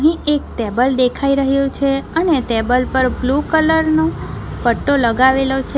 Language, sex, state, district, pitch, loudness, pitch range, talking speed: Gujarati, female, Gujarat, Valsad, 275 Hz, -16 LUFS, 255-295 Hz, 145 wpm